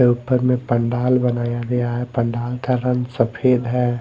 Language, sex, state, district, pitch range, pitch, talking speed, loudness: Hindi, male, Delhi, New Delhi, 120-125 Hz, 125 Hz, 165 wpm, -20 LUFS